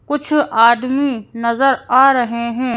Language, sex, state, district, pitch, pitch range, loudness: Hindi, female, Madhya Pradesh, Bhopal, 255 Hz, 235-275 Hz, -15 LUFS